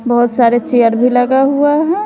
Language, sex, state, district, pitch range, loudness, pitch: Hindi, female, Bihar, West Champaran, 240-285 Hz, -12 LUFS, 245 Hz